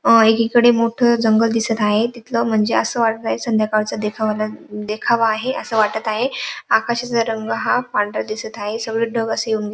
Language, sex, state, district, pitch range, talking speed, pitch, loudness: Marathi, female, Maharashtra, Dhule, 215-230 Hz, 180 wpm, 225 Hz, -18 LUFS